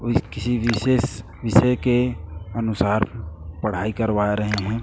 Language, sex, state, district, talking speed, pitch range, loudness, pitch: Hindi, male, Chhattisgarh, Raipur, 135 wpm, 100-115 Hz, -22 LUFS, 110 Hz